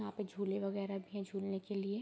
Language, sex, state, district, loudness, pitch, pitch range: Hindi, female, Bihar, Sitamarhi, -40 LUFS, 200 Hz, 195-200 Hz